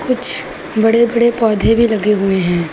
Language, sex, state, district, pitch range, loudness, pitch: Hindi, female, Uttar Pradesh, Lucknow, 205-235 Hz, -14 LUFS, 225 Hz